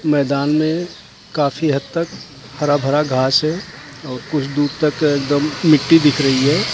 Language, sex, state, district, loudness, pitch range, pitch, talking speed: Hindi, male, Maharashtra, Mumbai Suburban, -17 LUFS, 140-155 Hz, 145 Hz, 160 wpm